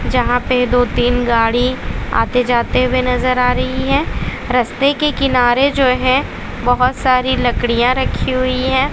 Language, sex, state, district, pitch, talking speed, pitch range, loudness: Hindi, female, Bihar, West Champaran, 250 Hz, 155 wpm, 245-255 Hz, -15 LUFS